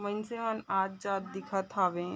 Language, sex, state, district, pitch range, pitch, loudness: Chhattisgarhi, female, Chhattisgarh, Raigarh, 190-210 Hz, 195 Hz, -33 LUFS